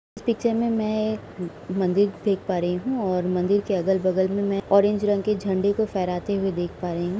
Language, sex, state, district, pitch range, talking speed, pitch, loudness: Hindi, female, Uttar Pradesh, Etah, 185-210 Hz, 225 wpm, 195 Hz, -24 LUFS